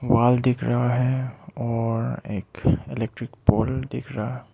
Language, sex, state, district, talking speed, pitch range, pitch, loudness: Hindi, male, Arunachal Pradesh, Lower Dibang Valley, 130 wpm, 115-125 Hz, 120 Hz, -24 LUFS